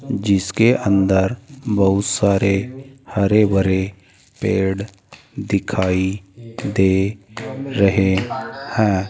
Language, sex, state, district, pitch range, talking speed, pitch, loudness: Hindi, male, Rajasthan, Jaipur, 95-115 Hz, 70 wpm, 100 Hz, -18 LUFS